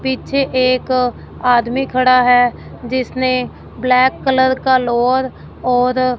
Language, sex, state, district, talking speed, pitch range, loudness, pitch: Hindi, female, Punjab, Fazilka, 115 wpm, 250-260 Hz, -15 LUFS, 255 Hz